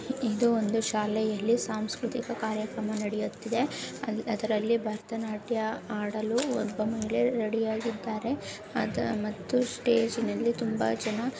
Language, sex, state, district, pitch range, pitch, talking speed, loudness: Kannada, female, Karnataka, Bellary, 215-235 Hz, 220 Hz, 90 wpm, -30 LUFS